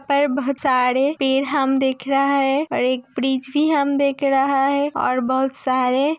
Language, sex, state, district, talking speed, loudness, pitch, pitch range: Hindi, female, Uttar Pradesh, Hamirpur, 205 wpm, -19 LUFS, 275 Hz, 265-280 Hz